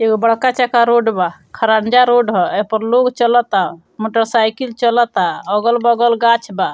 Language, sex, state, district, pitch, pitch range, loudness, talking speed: Bhojpuri, female, Bihar, Muzaffarpur, 235 Hz, 220-240 Hz, -14 LUFS, 160 wpm